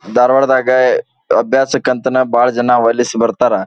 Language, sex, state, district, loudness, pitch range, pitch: Kannada, male, Karnataka, Dharwad, -13 LUFS, 120-130 Hz, 125 Hz